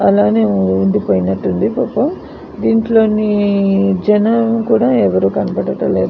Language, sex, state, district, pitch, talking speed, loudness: Telugu, female, Andhra Pradesh, Anantapur, 195 Hz, 90 wpm, -14 LUFS